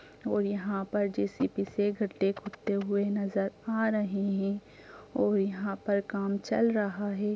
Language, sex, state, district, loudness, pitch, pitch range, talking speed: Hindi, male, Bihar, Gaya, -31 LUFS, 200 Hz, 200-205 Hz, 155 wpm